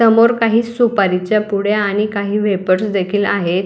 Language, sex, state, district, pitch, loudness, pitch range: Marathi, female, Maharashtra, Dhule, 205 Hz, -15 LUFS, 200-220 Hz